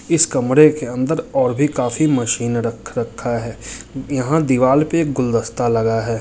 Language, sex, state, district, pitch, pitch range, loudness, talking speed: Maithili, male, Bihar, Muzaffarpur, 130 Hz, 115-150 Hz, -17 LUFS, 175 wpm